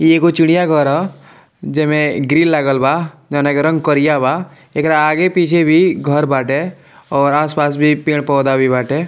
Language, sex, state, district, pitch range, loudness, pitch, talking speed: Bhojpuri, male, Bihar, East Champaran, 140-160 Hz, -14 LUFS, 150 Hz, 170 wpm